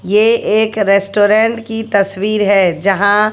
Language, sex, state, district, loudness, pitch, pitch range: Hindi, female, Bihar, West Champaran, -13 LUFS, 210 Hz, 200-220 Hz